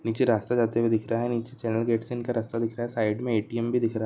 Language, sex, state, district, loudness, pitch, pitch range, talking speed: Hindi, male, Jharkhand, Sahebganj, -27 LUFS, 115 Hz, 115-120 Hz, 340 wpm